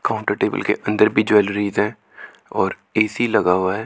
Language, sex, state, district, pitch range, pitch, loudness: Hindi, male, Chandigarh, Chandigarh, 100-110 Hz, 105 Hz, -19 LUFS